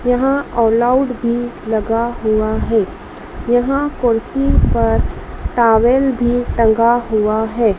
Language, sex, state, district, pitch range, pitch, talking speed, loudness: Hindi, female, Madhya Pradesh, Dhar, 225-245 Hz, 235 Hz, 115 wpm, -16 LUFS